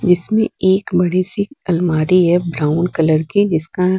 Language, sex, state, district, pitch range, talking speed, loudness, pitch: Hindi, female, Bihar, West Champaran, 170-190 Hz, 150 wpm, -16 LUFS, 180 Hz